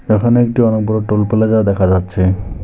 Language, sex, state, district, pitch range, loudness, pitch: Bengali, male, West Bengal, Alipurduar, 95-110 Hz, -14 LUFS, 110 Hz